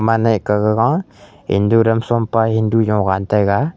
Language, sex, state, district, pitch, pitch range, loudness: Wancho, male, Arunachal Pradesh, Longding, 110 Hz, 105-115 Hz, -16 LUFS